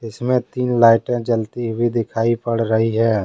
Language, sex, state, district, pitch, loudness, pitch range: Hindi, male, Jharkhand, Deoghar, 115 Hz, -18 LUFS, 115-120 Hz